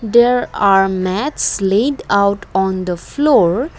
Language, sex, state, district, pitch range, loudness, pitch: English, female, Assam, Kamrup Metropolitan, 190-245 Hz, -15 LUFS, 200 Hz